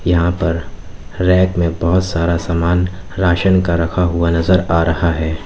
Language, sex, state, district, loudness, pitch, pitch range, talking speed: Hindi, male, Uttar Pradesh, Lalitpur, -16 LUFS, 85 Hz, 85-90 Hz, 165 wpm